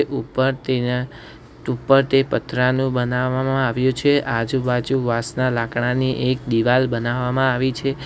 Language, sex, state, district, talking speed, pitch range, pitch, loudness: Gujarati, male, Gujarat, Valsad, 110 wpm, 125-130 Hz, 130 Hz, -20 LUFS